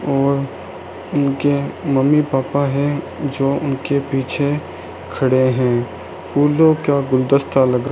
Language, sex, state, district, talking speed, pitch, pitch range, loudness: Hindi, male, Rajasthan, Bikaner, 115 wpm, 140 Hz, 130-145 Hz, -18 LUFS